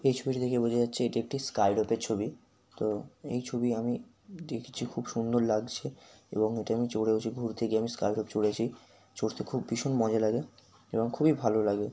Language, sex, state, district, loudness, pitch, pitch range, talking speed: Bengali, male, West Bengal, Kolkata, -31 LUFS, 115 Hz, 110-120 Hz, 180 wpm